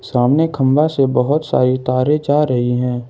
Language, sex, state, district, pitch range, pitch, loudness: Hindi, male, Jharkhand, Ranchi, 125-150 Hz, 130 Hz, -16 LUFS